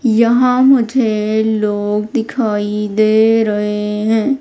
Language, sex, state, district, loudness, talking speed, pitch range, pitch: Hindi, female, Madhya Pradesh, Umaria, -14 LUFS, 95 wpm, 210-235 Hz, 220 Hz